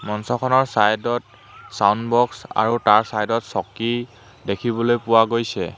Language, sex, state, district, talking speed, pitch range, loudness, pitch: Assamese, male, Assam, Hailakandi, 115 wpm, 110-120 Hz, -20 LUFS, 115 Hz